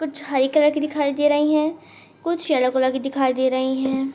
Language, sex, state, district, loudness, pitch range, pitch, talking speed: Hindi, female, Jharkhand, Sahebganj, -21 LUFS, 265-300 Hz, 285 Hz, 230 wpm